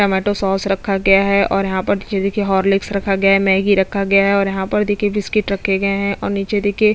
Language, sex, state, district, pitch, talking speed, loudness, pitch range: Hindi, female, Chhattisgarh, Bastar, 195 Hz, 250 wpm, -16 LUFS, 195-205 Hz